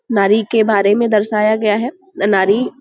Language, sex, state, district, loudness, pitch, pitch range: Hindi, female, Uttar Pradesh, Budaun, -14 LUFS, 215 Hz, 205-225 Hz